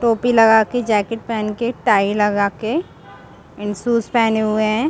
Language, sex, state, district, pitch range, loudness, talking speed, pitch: Hindi, female, Chhattisgarh, Balrampur, 210-235 Hz, -17 LUFS, 185 wpm, 225 Hz